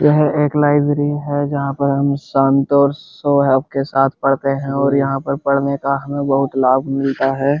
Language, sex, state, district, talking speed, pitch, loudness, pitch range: Hindi, male, Uttar Pradesh, Muzaffarnagar, 180 wpm, 140 Hz, -16 LUFS, 135-145 Hz